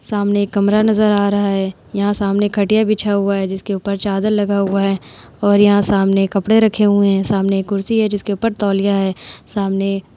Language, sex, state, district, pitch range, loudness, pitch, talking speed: Hindi, female, Uttar Pradesh, Hamirpur, 195-205 Hz, -16 LUFS, 200 Hz, 210 wpm